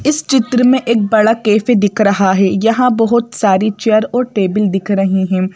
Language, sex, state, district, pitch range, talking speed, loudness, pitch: Hindi, female, Madhya Pradesh, Bhopal, 200-240 Hz, 195 wpm, -13 LUFS, 215 Hz